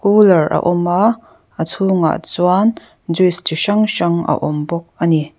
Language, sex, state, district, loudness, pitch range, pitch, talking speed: Mizo, female, Mizoram, Aizawl, -15 LUFS, 165-205 Hz, 175 Hz, 180 wpm